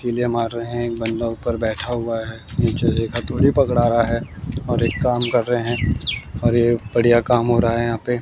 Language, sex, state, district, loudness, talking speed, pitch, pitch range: Hindi, male, Haryana, Jhajjar, -20 LUFS, 225 wpm, 120 Hz, 115-120 Hz